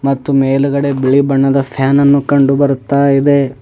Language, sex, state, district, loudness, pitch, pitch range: Kannada, male, Karnataka, Bidar, -12 LUFS, 140 Hz, 135-140 Hz